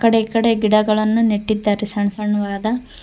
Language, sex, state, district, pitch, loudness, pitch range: Kannada, female, Karnataka, Koppal, 215 Hz, -18 LUFS, 210-225 Hz